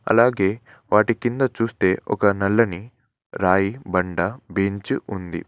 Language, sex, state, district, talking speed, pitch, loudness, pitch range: Telugu, male, Telangana, Mahabubabad, 110 wpm, 100 Hz, -21 LUFS, 95-120 Hz